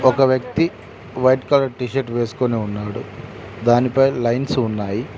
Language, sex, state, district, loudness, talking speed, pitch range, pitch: Telugu, male, Telangana, Mahabubabad, -19 LUFS, 115 wpm, 110-130 Hz, 125 Hz